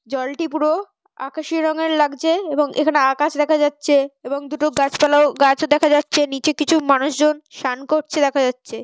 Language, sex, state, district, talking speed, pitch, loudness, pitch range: Bengali, female, West Bengal, North 24 Parganas, 155 wpm, 295 Hz, -18 LUFS, 275-310 Hz